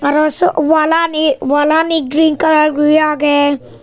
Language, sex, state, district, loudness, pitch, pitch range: Chakma, male, Tripura, Unakoti, -12 LUFS, 305 Hz, 290-315 Hz